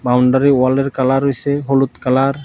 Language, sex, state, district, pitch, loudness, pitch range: Bengali, male, Tripura, South Tripura, 135 Hz, -15 LUFS, 130-140 Hz